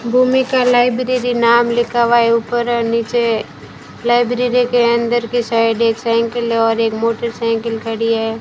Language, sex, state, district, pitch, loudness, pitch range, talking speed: Hindi, female, Rajasthan, Bikaner, 235 Hz, -15 LUFS, 230-240 Hz, 150 wpm